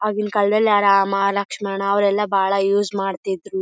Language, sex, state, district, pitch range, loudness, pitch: Kannada, female, Karnataka, Bellary, 195-210 Hz, -19 LUFS, 200 Hz